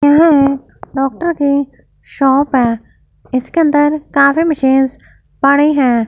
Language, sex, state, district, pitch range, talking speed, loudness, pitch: Hindi, female, Punjab, Fazilka, 265-295 Hz, 100 wpm, -13 LUFS, 280 Hz